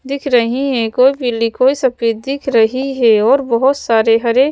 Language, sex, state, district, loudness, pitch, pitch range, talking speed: Hindi, female, Madhya Pradesh, Bhopal, -14 LUFS, 250 Hz, 230-270 Hz, 185 wpm